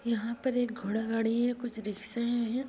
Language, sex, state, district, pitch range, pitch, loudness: Hindi, female, Bihar, Saharsa, 225-245 Hz, 235 Hz, -32 LUFS